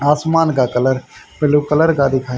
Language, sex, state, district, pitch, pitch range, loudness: Hindi, male, Haryana, Charkhi Dadri, 145 Hz, 130-155 Hz, -15 LUFS